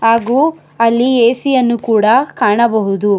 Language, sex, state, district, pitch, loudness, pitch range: Kannada, female, Karnataka, Bangalore, 235 Hz, -13 LUFS, 220-255 Hz